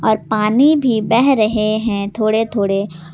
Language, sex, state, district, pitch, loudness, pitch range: Hindi, female, Jharkhand, Garhwa, 215 Hz, -15 LUFS, 210-225 Hz